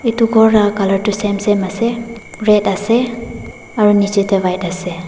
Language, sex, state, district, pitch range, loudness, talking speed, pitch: Nagamese, female, Nagaland, Dimapur, 195-230 Hz, -14 LUFS, 175 wpm, 210 Hz